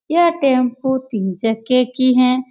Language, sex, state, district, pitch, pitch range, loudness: Hindi, female, Bihar, Saran, 255 Hz, 240-265 Hz, -16 LUFS